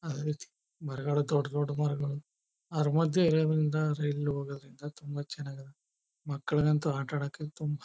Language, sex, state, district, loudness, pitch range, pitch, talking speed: Kannada, male, Karnataka, Chamarajanagar, -32 LUFS, 145-150 Hz, 145 Hz, 105 wpm